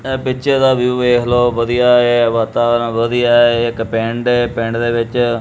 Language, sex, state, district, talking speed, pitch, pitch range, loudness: Punjabi, male, Punjab, Kapurthala, 190 wpm, 120 Hz, 115-125 Hz, -14 LUFS